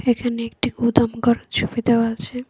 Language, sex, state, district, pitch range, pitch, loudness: Bengali, female, Tripura, West Tripura, 225-240 Hz, 235 Hz, -20 LUFS